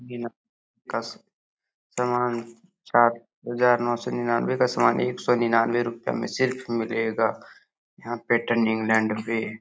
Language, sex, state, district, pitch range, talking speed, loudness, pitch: Hindi, male, Bihar, Supaul, 115-120 Hz, 130 wpm, -24 LUFS, 120 Hz